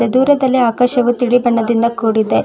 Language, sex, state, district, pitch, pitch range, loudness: Kannada, female, Karnataka, Bangalore, 240 Hz, 230-250 Hz, -14 LUFS